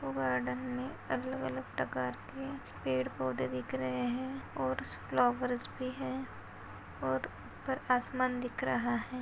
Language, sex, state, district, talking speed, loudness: Hindi, female, Maharashtra, Sindhudurg, 145 wpm, -36 LUFS